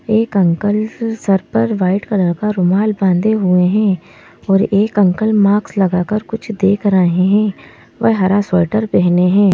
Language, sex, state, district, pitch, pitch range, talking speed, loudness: Hindi, male, Madhya Pradesh, Bhopal, 200 Hz, 185-210 Hz, 155 wpm, -14 LUFS